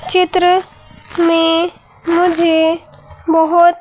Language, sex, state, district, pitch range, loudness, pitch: Hindi, female, Madhya Pradesh, Bhopal, 330-360 Hz, -13 LUFS, 340 Hz